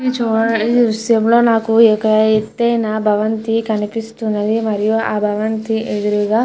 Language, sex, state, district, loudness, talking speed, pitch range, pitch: Telugu, female, Andhra Pradesh, Chittoor, -15 LUFS, 140 wpm, 215-225 Hz, 220 Hz